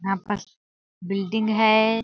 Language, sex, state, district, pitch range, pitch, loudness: Hindi, female, Chhattisgarh, Balrampur, 195-220 Hz, 215 Hz, -22 LUFS